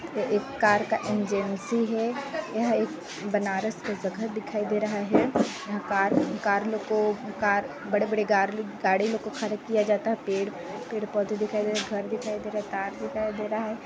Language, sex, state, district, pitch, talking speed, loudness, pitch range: Hindi, female, Chhattisgarh, Sarguja, 210 Hz, 195 wpm, -27 LUFS, 205-220 Hz